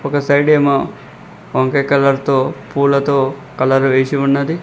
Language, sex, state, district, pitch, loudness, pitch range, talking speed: Telugu, male, Telangana, Mahabubabad, 140 Hz, -15 LUFS, 135-140 Hz, 105 wpm